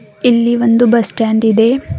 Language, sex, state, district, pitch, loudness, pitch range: Kannada, female, Karnataka, Bidar, 235 Hz, -12 LUFS, 225-240 Hz